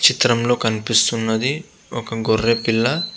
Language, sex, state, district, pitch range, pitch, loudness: Telugu, male, Andhra Pradesh, Visakhapatnam, 115-130 Hz, 115 Hz, -18 LUFS